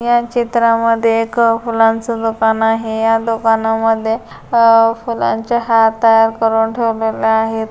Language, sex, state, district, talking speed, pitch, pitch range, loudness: Marathi, female, Maharashtra, Solapur, 125 wpm, 225 Hz, 225-230 Hz, -14 LUFS